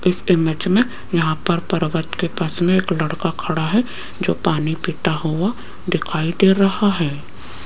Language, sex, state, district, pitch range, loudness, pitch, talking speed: Hindi, female, Rajasthan, Jaipur, 160-190 Hz, -19 LUFS, 175 Hz, 165 wpm